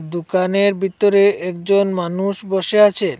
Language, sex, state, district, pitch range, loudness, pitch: Bengali, male, Assam, Hailakandi, 180-200 Hz, -17 LUFS, 195 Hz